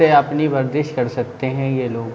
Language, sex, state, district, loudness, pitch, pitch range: Hindi, male, Jharkhand, Sahebganj, -19 LUFS, 130 Hz, 125-145 Hz